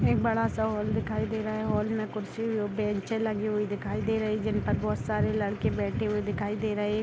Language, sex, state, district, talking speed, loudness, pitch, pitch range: Hindi, female, Bihar, Darbhanga, 250 wpm, -29 LUFS, 215 Hz, 210-220 Hz